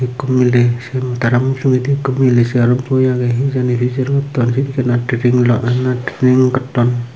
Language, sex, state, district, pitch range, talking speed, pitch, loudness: Chakma, male, Tripura, Unakoti, 120-130 Hz, 175 wpm, 125 Hz, -15 LUFS